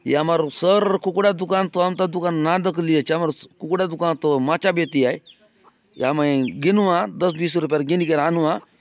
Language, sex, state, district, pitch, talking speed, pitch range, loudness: Halbi, male, Chhattisgarh, Bastar, 170 Hz, 135 wpm, 155-185 Hz, -20 LUFS